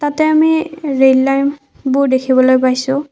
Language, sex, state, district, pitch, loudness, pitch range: Assamese, female, Assam, Kamrup Metropolitan, 275 Hz, -13 LUFS, 260-300 Hz